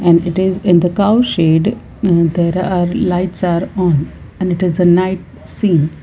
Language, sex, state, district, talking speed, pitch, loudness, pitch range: English, female, Gujarat, Valsad, 180 wpm, 180 Hz, -14 LUFS, 170-185 Hz